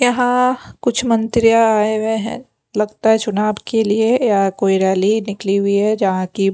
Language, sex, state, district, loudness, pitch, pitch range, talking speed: Hindi, female, Punjab, Pathankot, -16 LUFS, 215 Hz, 200-230 Hz, 185 wpm